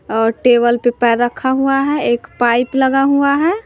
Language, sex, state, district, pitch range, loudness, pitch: Hindi, female, Bihar, West Champaran, 240-275 Hz, -14 LUFS, 255 Hz